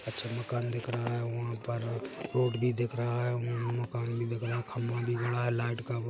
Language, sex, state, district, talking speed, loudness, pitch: Hindi, male, Chhattisgarh, Rajnandgaon, 235 wpm, -33 LUFS, 120 Hz